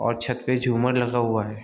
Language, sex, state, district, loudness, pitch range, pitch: Hindi, male, Bihar, Gopalganj, -24 LUFS, 115-125 Hz, 120 Hz